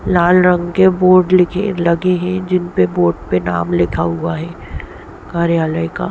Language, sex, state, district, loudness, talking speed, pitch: Hindi, female, Bihar, East Champaran, -15 LUFS, 155 wpm, 175 Hz